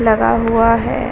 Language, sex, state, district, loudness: Hindi, female, Bihar, Vaishali, -14 LUFS